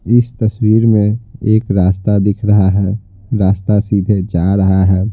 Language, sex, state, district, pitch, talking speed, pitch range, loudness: Hindi, male, Bihar, Patna, 105 Hz, 150 wpm, 95-110 Hz, -13 LUFS